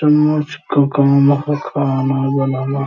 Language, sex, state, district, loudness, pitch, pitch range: Hindi, male, Bihar, Araria, -16 LUFS, 140 Hz, 135-150 Hz